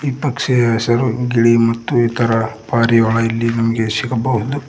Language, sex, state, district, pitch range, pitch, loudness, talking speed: Kannada, male, Karnataka, Koppal, 115-125 Hz, 115 Hz, -16 LUFS, 115 wpm